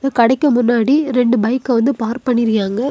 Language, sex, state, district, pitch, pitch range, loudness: Tamil, female, Tamil Nadu, Kanyakumari, 245 Hz, 235-265 Hz, -15 LUFS